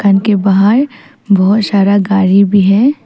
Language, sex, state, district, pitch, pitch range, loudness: Hindi, female, Arunachal Pradesh, Papum Pare, 200 Hz, 195-210 Hz, -10 LUFS